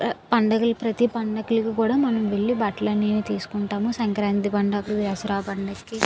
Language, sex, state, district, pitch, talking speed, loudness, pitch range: Telugu, female, Andhra Pradesh, Visakhapatnam, 215 Hz, 150 wpm, -24 LUFS, 205-225 Hz